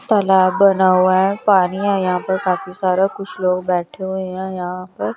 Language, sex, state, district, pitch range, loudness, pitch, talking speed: Hindi, female, Bihar, West Champaran, 185-195 Hz, -17 LUFS, 190 Hz, 195 wpm